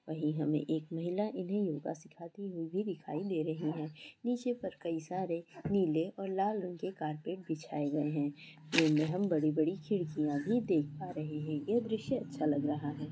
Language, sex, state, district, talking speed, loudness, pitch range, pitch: Hindi, female, Bihar, East Champaran, 185 wpm, -35 LUFS, 150-190 Hz, 165 Hz